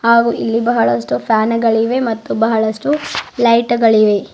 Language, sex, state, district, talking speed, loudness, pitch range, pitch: Kannada, female, Karnataka, Bidar, 95 wpm, -14 LUFS, 220-235 Hz, 230 Hz